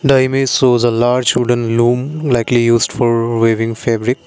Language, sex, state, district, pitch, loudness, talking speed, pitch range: English, male, Assam, Kamrup Metropolitan, 120 Hz, -14 LUFS, 170 wpm, 115-130 Hz